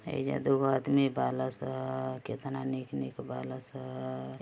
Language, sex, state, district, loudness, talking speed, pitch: Hindi, male, Uttar Pradesh, Deoria, -33 LUFS, 120 wpm, 130 Hz